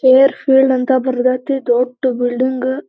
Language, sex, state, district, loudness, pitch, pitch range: Kannada, female, Karnataka, Belgaum, -15 LUFS, 260 Hz, 255-265 Hz